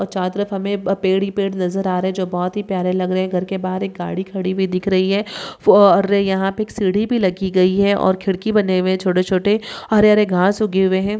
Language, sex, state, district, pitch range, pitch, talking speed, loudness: Hindi, female, Chhattisgarh, Bilaspur, 185-200 Hz, 190 Hz, 245 wpm, -18 LUFS